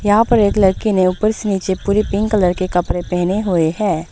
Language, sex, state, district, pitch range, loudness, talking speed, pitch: Hindi, female, Arunachal Pradesh, Lower Dibang Valley, 180-210 Hz, -16 LUFS, 235 wpm, 195 Hz